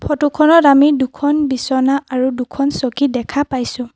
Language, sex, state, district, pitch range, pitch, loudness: Assamese, female, Assam, Sonitpur, 255-290 Hz, 275 Hz, -15 LUFS